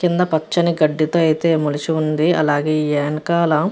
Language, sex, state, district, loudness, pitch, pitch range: Telugu, female, Andhra Pradesh, Visakhapatnam, -18 LUFS, 155 Hz, 155-170 Hz